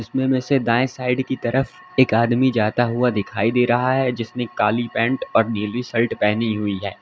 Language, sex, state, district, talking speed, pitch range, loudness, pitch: Hindi, male, Uttar Pradesh, Lalitpur, 205 wpm, 110-130 Hz, -20 LUFS, 120 Hz